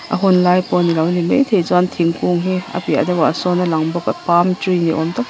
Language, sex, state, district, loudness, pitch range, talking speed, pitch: Mizo, female, Mizoram, Aizawl, -16 LUFS, 170-185 Hz, 260 wpm, 180 Hz